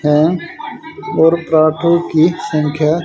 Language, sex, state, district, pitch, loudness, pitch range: Hindi, male, Haryana, Charkhi Dadri, 160 Hz, -14 LUFS, 155-170 Hz